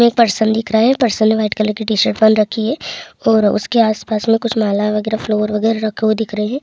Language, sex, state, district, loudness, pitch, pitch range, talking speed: Hindi, female, Bihar, Bhagalpur, -15 LUFS, 220 Hz, 215-225 Hz, 245 wpm